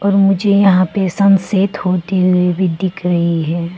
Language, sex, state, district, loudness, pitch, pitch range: Hindi, female, Arunachal Pradesh, Longding, -14 LUFS, 185 Hz, 180-195 Hz